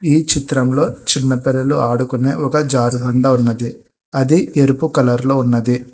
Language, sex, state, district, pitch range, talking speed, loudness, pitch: Telugu, male, Telangana, Hyderabad, 125-140 Hz, 140 wpm, -15 LUFS, 130 Hz